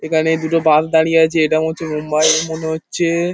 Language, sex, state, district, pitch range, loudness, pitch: Bengali, male, West Bengal, Paschim Medinipur, 155-160 Hz, -16 LUFS, 160 Hz